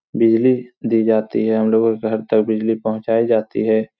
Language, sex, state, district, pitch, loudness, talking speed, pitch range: Hindi, male, Bihar, Supaul, 110 Hz, -18 LUFS, 180 wpm, 110-115 Hz